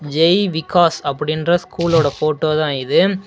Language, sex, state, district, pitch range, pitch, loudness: Tamil, male, Tamil Nadu, Namakkal, 155-175 Hz, 160 Hz, -17 LUFS